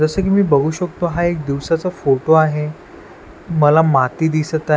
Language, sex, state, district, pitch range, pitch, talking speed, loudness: Marathi, male, Maharashtra, Washim, 150-175 Hz, 160 Hz, 175 wpm, -16 LUFS